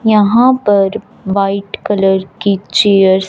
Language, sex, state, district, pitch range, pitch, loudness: Hindi, female, Punjab, Fazilka, 195-210 Hz, 200 Hz, -12 LUFS